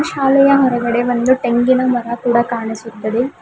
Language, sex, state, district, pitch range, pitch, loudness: Kannada, female, Karnataka, Bidar, 235-260 Hz, 240 Hz, -15 LUFS